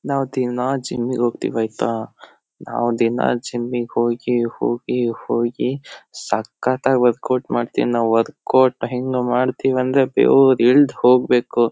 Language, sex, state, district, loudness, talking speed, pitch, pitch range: Kannada, male, Karnataka, Shimoga, -19 LUFS, 125 wpm, 125 Hz, 120-130 Hz